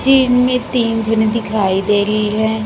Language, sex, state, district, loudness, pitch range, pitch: Hindi, female, Chhattisgarh, Raipur, -15 LUFS, 210-245 Hz, 220 Hz